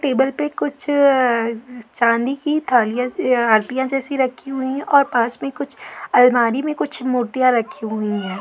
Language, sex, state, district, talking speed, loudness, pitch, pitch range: Hindi, female, Uttar Pradesh, Etah, 155 wpm, -18 LUFS, 255 Hz, 235-275 Hz